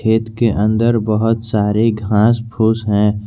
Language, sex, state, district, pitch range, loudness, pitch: Hindi, male, Jharkhand, Garhwa, 105-115 Hz, -15 LUFS, 110 Hz